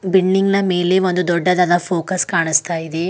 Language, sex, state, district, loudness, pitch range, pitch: Kannada, female, Karnataka, Bidar, -16 LUFS, 170-185 Hz, 180 Hz